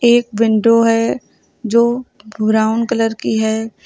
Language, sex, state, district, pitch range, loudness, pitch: Hindi, female, Uttar Pradesh, Lucknow, 220-235 Hz, -15 LUFS, 225 Hz